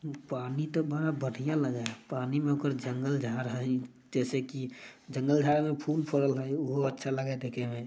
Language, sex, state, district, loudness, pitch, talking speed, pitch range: Maithili, male, Bihar, Samastipur, -32 LUFS, 135 Hz, 190 wpm, 130-145 Hz